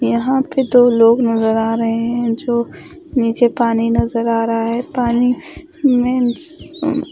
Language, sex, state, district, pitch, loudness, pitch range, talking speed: Hindi, female, Odisha, Khordha, 240 Hz, -16 LUFS, 230-260 Hz, 145 wpm